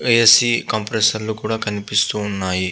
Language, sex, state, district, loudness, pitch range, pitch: Telugu, male, Andhra Pradesh, Visakhapatnam, -17 LUFS, 105-110 Hz, 110 Hz